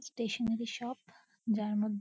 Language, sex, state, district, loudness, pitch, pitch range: Bengali, female, West Bengal, Kolkata, -35 LUFS, 230 Hz, 210-235 Hz